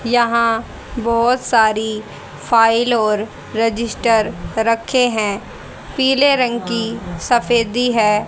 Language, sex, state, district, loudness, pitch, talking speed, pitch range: Hindi, female, Haryana, Rohtak, -16 LUFS, 230 Hz, 95 wpm, 220-240 Hz